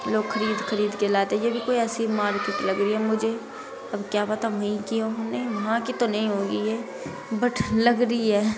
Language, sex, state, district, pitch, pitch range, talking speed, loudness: Hindi, female, Uttar Pradesh, Budaun, 220 Hz, 210-230 Hz, 215 wpm, -25 LUFS